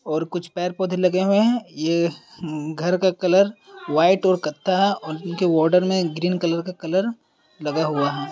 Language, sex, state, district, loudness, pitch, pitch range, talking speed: Hindi, male, Uttar Pradesh, Deoria, -21 LUFS, 180 Hz, 160-190 Hz, 195 wpm